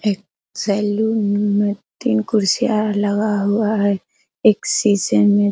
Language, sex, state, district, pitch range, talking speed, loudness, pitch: Hindi, female, Bihar, Araria, 200-215 Hz, 130 wpm, -18 LUFS, 205 Hz